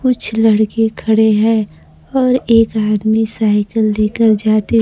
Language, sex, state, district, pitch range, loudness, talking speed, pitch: Hindi, female, Bihar, Kaimur, 215-225 Hz, -14 LUFS, 125 wpm, 220 Hz